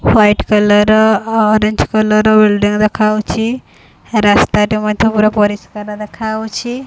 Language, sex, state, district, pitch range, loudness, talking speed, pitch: Odia, female, Odisha, Khordha, 210-220 Hz, -12 LUFS, 120 wpm, 215 Hz